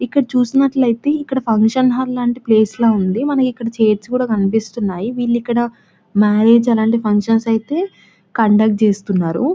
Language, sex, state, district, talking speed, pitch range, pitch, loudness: Telugu, female, Telangana, Nalgonda, 125 wpm, 215-250 Hz, 230 Hz, -16 LUFS